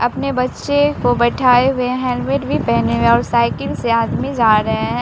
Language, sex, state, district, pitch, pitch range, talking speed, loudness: Hindi, female, Bihar, Katihar, 240 Hz, 220-255 Hz, 205 wpm, -16 LUFS